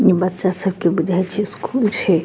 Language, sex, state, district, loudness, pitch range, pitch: Maithili, female, Bihar, Begusarai, -18 LUFS, 180-205 Hz, 185 Hz